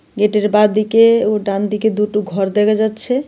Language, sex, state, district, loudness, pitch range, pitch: Bengali, female, Tripura, West Tripura, -15 LUFS, 210-220 Hz, 210 Hz